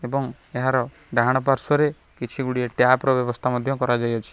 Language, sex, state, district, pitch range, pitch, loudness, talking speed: Odia, male, Odisha, Khordha, 120-135 Hz, 125 Hz, -22 LUFS, 150 wpm